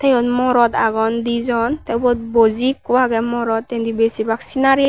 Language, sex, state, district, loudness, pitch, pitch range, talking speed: Chakma, female, Tripura, West Tripura, -17 LUFS, 235 Hz, 225-250 Hz, 160 wpm